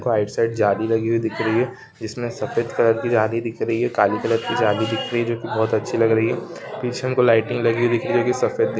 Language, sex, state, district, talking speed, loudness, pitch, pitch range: Hindi, male, Chhattisgarh, Rajnandgaon, 270 wpm, -21 LUFS, 115 Hz, 110-120 Hz